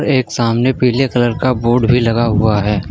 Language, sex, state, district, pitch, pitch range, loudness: Hindi, male, Uttar Pradesh, Lucknow, 120 Hz, 115-130 Hz, -14 LUFS